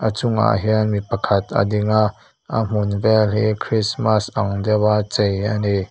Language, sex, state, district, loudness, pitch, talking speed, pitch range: Mizo, male, Mizoram, Aizawl, -19 LUFS, 105 Hz, 195 wpm, 100-110 Hz